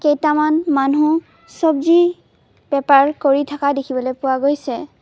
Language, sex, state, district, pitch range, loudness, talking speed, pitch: Assamese, female, Assam, Kamrup Metropolitan, 275-310 Hz, -17 LUFS, 110 wpm, 290 Hz